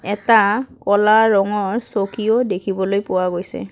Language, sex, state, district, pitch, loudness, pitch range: Assamese, female, Assam, Kamrup Metropolitan, 205 Hz, -17 LUFS, 195-220 Hz